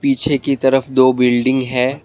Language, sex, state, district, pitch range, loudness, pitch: Hindi, male, Assam, Kamrup Metropolitan, 130-140 Hz, -15 LUFS, 130 Hz